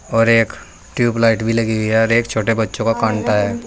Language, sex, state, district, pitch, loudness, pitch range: Hindi, male, Uttar Pradesh, Saharanpur, 115 Hz, -16 LUFS, 110-115 Hz